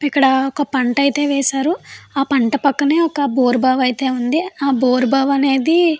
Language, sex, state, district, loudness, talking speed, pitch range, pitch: Telugu, female, Andhra Pradesh, Anantapur, -16 LUFS, 160 wpm, 260-290 Hz, 275 Hz